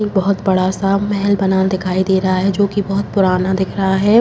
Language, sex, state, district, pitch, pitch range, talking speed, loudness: Hindi, female, Uttar Pradesh, Jalaun, 190 Hz, 190-200 Hz, 230 wpm, -16 LUFS